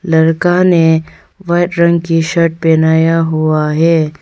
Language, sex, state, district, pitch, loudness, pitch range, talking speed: Hindi, female, Arunachal Pradesh, Longding, 165 Hz, -11 LUFS, 160-170 Hz, 130 wpm